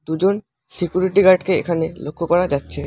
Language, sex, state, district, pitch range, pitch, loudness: Bengali, male, West Bengal, Alipurduar, 160-185 Hz, 175 Hz, -18 LUFS